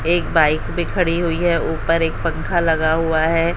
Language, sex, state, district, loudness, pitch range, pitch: Hindi, female, Haryana, Jhajjar, -18 LUFS, 160-170 Hz, 165 Hz